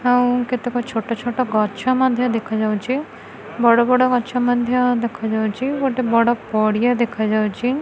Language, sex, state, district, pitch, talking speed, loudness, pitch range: Odia, female, Odisha, Khordha, 240 Hz, 125 wpm, -19 LUFS, 220-250 Hz